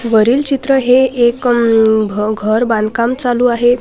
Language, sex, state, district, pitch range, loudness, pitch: Marathi, female, Maharashtra, Washim, 220-245 Hz, -13 LUFS, 240 Hz